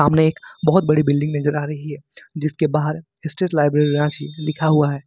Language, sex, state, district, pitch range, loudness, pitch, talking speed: Hindi, male, Jharkhand, Ranchi, 145-155 Hz, -19 LUFS, 150 Hz, 200 wpm